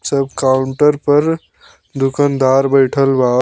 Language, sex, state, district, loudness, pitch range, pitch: Bhojpuri, male, Bihar, Muzaffarpur, -14 LUFS, 130-145 Hz, 135 Hz